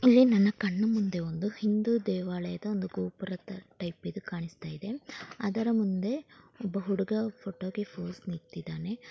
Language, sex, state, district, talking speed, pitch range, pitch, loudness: Kannada, female, Karnataka, Dakshina Kannada, 125 wpm, 180-220 Hz, 200 Hz, -31 LUFS